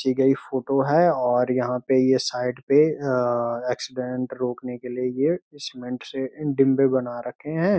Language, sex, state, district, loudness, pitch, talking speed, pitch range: Hindi, male, Uttarakhand, Uttarkashi, -23 LUFS, 130 Hz, 160 wpm, 125-135 Hz